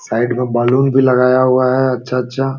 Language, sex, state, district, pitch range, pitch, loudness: Hindi, male, Uttar Pradesh, Jalaun, 125-130 Hz, 130 Hz, -14 LUFS